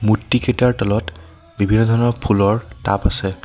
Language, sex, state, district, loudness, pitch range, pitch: Assamese, male, Assam, Sonitpur, -18 LUFS, 95-115 Hz, 105 Hz